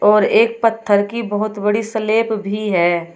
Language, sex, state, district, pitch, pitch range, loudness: Hindi, female, Uttar Pradesh, Shamli, 210 Hz, 205-225 Hz, -17 LUFS